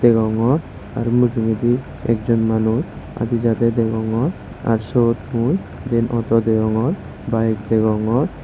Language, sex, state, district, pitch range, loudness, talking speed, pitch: Chakma, male, Tripura, West Tripura, 110-120 Hz, -19 LUFS, 115 wpm, 115 Hz